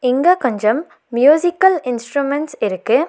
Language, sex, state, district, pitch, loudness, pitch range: Tamil, female, Tamil Nadu, Nilgiris, 275 Hz, -16 LUFS, 240-315 Hz